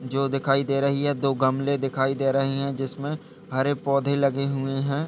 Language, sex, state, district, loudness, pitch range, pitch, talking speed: Hindi, male, Uttar Pradesh, Jalaun, -24 LUFS, 135-140 Hz, 135 Hz, 200 wpm